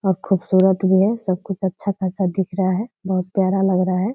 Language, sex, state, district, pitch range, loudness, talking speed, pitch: Hindi, female, Bihar, Purnia, 185-195 Hz, -20 LUFS, 230 wpm, 190 Hz